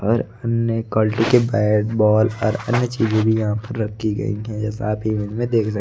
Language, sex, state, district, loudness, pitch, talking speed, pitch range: Hindi, male, Odisha, Nuapada, -20 LUFS, 110 Hz, 215 wpm, 105-115 Hz